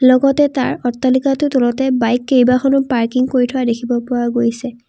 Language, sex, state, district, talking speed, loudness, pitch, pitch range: Assamese, female, Assam, Kamrup Metropolitan, 145 wpm, -15 LUFS, 255 Hz, 240-265 Hz